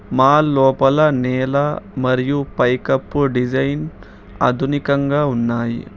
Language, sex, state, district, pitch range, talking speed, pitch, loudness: Telugu, male, Telangana, Hyderabad, 125-145 Hz, 80 wpm, 135 Hz, -17 LUFS